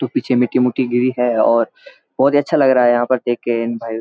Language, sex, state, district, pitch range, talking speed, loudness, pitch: Hindi, male, Uttarakhand, Uttarkashi, 120-130 Hz, 285 wpm, -16 LUFS, 125 Hz